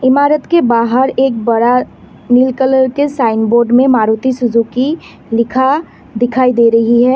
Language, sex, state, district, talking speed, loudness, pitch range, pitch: Hindi, female, Assam, Kamrup Metropolitan, 150 wpm, -12 LUFS, 235-265 Hz, 255 Hz